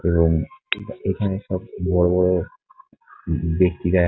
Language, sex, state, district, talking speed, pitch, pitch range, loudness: Bengali, male, West Bengal, Kolkata, 90 wpm, 90 Hz, 85-95 Hz, -22 LUFS